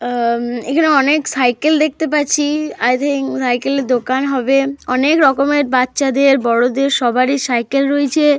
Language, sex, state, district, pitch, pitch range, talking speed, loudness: Bengali, female, Jharkhand, Jamtara, 275 Hz, 250-290 Hz, 130 wpm, -15 LUFS